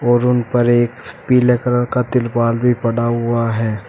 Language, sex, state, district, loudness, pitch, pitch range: Hindi, male, Uttar Pradesh, Saharanpur, -16 LUFS, 120 Hz, 115-125 Hz